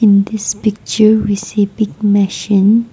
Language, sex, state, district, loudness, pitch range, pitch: English, female, Nagaland, Kohima, -14 LUFS, 200-215 Hz, 210 Hz